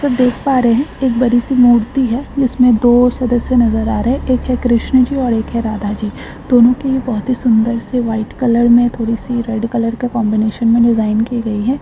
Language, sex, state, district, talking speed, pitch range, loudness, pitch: Hindi, female, West Bengal, Jhargram, 235 wpm, 230-250 Hz, -14 LUFS, 240 Hz